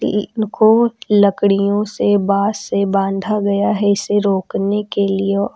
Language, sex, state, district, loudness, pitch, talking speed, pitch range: Hindi, female, Uttar Pradesh, Lucknow, -16 LUFS, 200 Hz, 140 wpm, 200-210 Hz